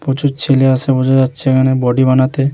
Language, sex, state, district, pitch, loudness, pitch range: Bengali, male, West Bengal, Jhargram, 130 Hz, -13 LUFS, 130-135 Hz